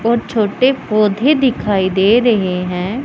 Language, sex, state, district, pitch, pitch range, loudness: Hindi, female, Punjab, Pathankot, 215 Hz, 195-245 Hz, -14 LUFS